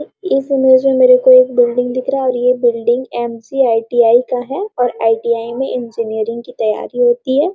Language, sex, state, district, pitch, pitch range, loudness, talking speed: Hindi, female, Bihar, Araria, 245 Hz, 235-260 Hz, -14 LUFS, 175 wpm